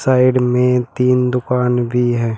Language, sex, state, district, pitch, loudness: Hindi, male, Uttar Pradesh, Shamli, 125 Hz, -15 LUFS